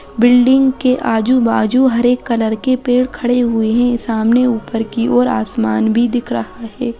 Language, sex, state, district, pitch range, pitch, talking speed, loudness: Bajjika, female, Bihar, Vaishali, 225-250 Hz, 240 Hz, 170 wpm, -14 LUFS